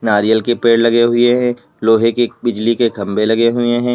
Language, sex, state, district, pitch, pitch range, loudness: Hindi, male, Uttar Pradesh, Lalitpur, 115 Hz, 110-120 Hz, -14 LUFS